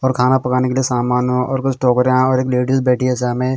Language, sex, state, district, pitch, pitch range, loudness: Hindi, male, Bihar, Patna, 125 Hz, 125-130 Hz, -16 LUFS